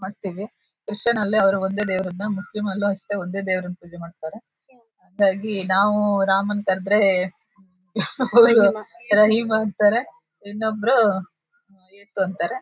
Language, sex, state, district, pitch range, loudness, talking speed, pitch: Kannada, female, Karnataka, Shimoga, 190-215 Hz, -20 LUFS, 100 wpm, 205 Hz